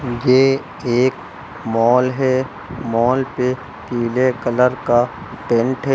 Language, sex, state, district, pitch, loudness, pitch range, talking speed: Hindi, male, Uttar Pradesh, Lucknow, 125 Hz, -18 LUFS, 120-130 Hz, 110 wpm